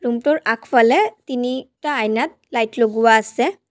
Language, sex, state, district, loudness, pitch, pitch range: Assamese, female, Assam, Sonitpur, -18 LUFS, 245 Hz, 225-295 Hz